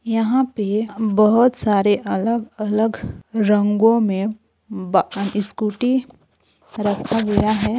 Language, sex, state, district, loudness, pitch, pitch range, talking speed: Hindi, female, Chhattisgarh, Balrampur, -19 LUFS, 215 Hz, 205-225 Hz, 90 wpm